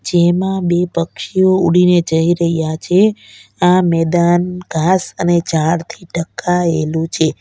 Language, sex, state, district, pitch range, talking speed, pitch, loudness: Gujarati, female, Gujarat, Valsad, 165-180 Hz, 115 wpm, 175 Hz, -15 LUFS